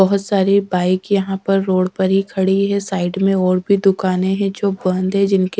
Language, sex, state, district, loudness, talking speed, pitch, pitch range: Hindi, female, Bihar, Katihar, -17 LUFS, 215 wpm, 195 Hz, 185-200 Hz